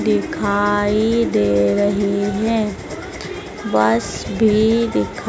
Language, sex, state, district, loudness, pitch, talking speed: Hindi, female, Madhya Pradesh, Dhar, -18 LUFS, 200 Hz, 80 wpm